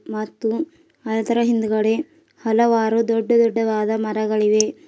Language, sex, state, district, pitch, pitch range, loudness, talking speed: Kannada, female, Karnataka, Bidar, 225 Hz, 215-235 Hz, -20 LUFS, 85 wpm